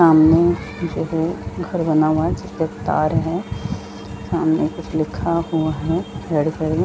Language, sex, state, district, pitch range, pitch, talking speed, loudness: Hindi, female, Jharkhand, Sahebganj, 155-170 Hz, 160 Hz, 140 wpm, -20 LUFS